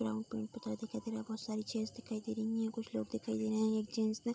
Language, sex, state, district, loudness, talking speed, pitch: Hindi, female, Uttar Pradesh, Budaun, -39 LUFS, 330 wpm, 220 Hz